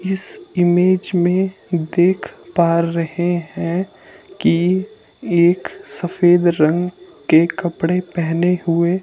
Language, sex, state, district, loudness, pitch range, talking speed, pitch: Hindi, male, Himachal Pradesh, Shimla, -17 LUFS, 170-185 Hz, 100 wpm, 175 Hz